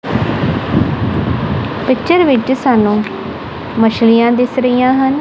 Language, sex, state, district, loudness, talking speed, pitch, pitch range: Punjabi, female, Punjab, Kapurthala, -13 LUFS, 80 wpm, 250 Hz, 230-265 Hz